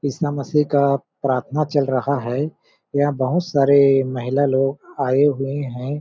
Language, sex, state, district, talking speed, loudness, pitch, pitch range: Hindi, male, Chhattisgarh, Balrampur, 150 wpm, -20 LUFS, 140 Hz, 135-145 Hz